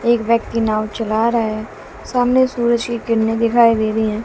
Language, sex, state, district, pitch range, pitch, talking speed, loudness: Hindi, female, Bihar, West Champaran, 220-235 Hz, 230 Hz, 200 wpm, -17 LUFS